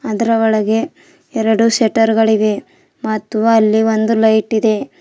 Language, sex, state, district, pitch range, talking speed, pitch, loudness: Kannada, female, Karnataka, Bidar, 220-230 Hz, 120 wpm, 225 Hz, -14 LUFS